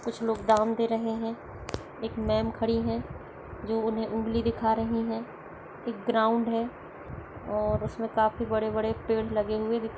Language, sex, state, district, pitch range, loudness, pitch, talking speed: Hindi, female, Chhattisgarh, Sarguja, 220-230 Hz, -29 LUFS, 225 Hz, 160 wpm